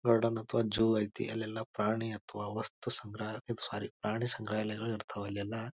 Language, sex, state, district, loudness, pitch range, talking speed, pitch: Kannada, male, Karnataka, Bijapur, -35 LUFS, 105-115 Hz, 145 wpm, 110 Hz